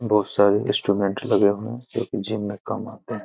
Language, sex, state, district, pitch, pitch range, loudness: Hindi, male, Bihar, Begusarai, 105 Hz, 100-110 Hz, -23 LUFS